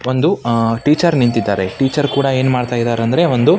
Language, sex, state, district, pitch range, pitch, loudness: Kannada, male, Karnataka, Mysore, 115-140 Hz, 125 Hz, -15 LUFS